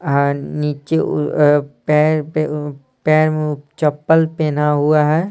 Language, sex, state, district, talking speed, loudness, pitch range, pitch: Hindi, male, Bihar, Patna, 125 wpm, -17 LUFS, 145-155 Hz, 150 Hz